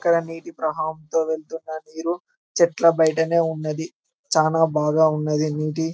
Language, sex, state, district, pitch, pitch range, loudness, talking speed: Telugu, male, Telangana, Karimnagar, 160 Hz, 155-165 Hz, -22 LUFS, 140 wpm